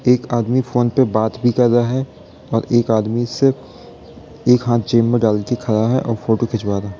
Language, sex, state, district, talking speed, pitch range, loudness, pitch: Hindi, male, Uttar Pradesh, Varanasi, 230 wpm, 115-125 Hz, -17 LUFS, 120 Hz